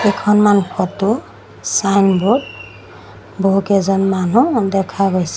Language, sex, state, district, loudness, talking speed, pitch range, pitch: Assamese, female, Assam, Sonitpur, -15 LUFS, 80 wpm, 185-205 Hz, 195 Hz